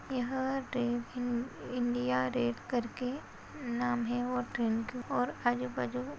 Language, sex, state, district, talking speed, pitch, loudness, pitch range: Hindi, female, Maharashtra, Sindhudurg, 145 wpm, 245 Hz, -34 LUFS, 235-250 Hz